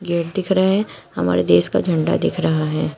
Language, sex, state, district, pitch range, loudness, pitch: Hindi, female, Uttar Pradesh, Shamli, 135-185 Hz, -19 LUFS, 165 Hz